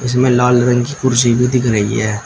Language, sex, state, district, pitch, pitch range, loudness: Hindi, male, Uttar Pradesh, Shamli, 125 Hz, 120-125 Hz, -13 LUFS